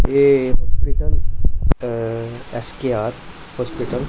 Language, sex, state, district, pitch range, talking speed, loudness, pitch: Hindi, male, Punjab, Pathankot, 75-125 Hz, 90 wpm, -22 LUFS, 115 Hz